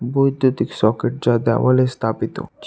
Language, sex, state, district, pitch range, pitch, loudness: Bengali, male, West Bengal, Alipurduar, 115-130 Hz, 120 Hz, -19 LUFS